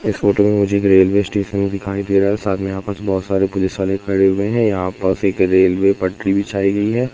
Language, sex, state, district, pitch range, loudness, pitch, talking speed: Hindi, male, Madhya Pradesh, Katni, 95-100 Hz, -17 LUFS, 100 Hz, 245 wpm